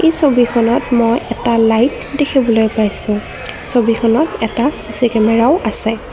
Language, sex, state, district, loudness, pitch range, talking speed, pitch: Assamese, female, Assam, Kamrup Metropolitan, -14 LUFS, 225-245 Hz, 110 wpm, 235 Hz